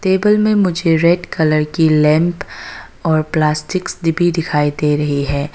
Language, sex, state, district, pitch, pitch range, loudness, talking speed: Hindi, female, Arunachal Pradesh, Papum Pare, 160 Hz, 150-180 Hz, -15 LUFS, 150 wpm